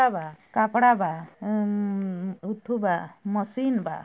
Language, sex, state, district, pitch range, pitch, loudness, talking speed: Bhojpuri, female, Uttar Pradesh, Ghazipur, 185-220 Hz, 205 Hz, -26 LUFS, 165 wpm